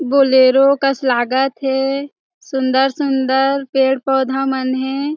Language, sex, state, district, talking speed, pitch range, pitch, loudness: Chhattisgarhi, female, Chhattisgarh, Jashpur, 105 wpm, 265-275 Hz, 270 Hz, -16 LUFS